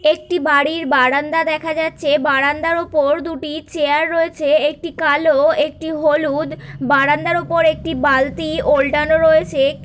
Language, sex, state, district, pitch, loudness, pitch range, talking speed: Bengali, female, West Bengal, Kolkata, 305 Hz, -16 LUFS, 290-320 Hz, 120 wpm